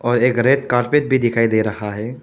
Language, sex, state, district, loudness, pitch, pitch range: Hindi, male, Arunachal Pradesh, Papum Pare, -17 LUFS, 120 Hz, 110-130 Hz